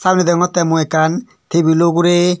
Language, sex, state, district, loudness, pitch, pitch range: Chakma, male, Tripura, Dhalai, -14 LUFS, 170 Hz, 165-180 Hz